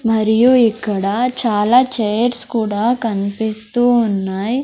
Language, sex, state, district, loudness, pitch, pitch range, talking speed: Telugu, female, Andhra Pradesh, Sri Satya Sai, -16 LUFS, 225 Hz, 210-245 Hz, 90 wpm